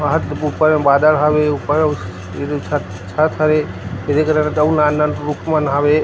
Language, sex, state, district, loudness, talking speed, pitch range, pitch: Chhattisgarhi, male, Chhattisgarh, Rajnandgaon, -16 LUFS, 150 wpm, 140-155 Hz, 150 Hz